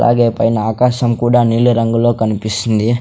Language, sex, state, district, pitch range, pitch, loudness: Telugu, male, Andhra Pradesh, Sri Satya Sai, 110-120 Hz, 115 Hz, -14 LUFS